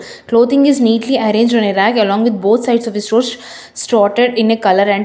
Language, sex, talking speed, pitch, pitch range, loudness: English, female, 240 wpm, 230 Hz, 210-240 Hz, -13 LUFS